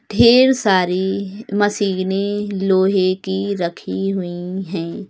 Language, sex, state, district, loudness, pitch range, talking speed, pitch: Hindi, female, Uttar Pradesh, Lucknow, -18 LUFS, 185-205 Hz, 95 wpm, 195 Hz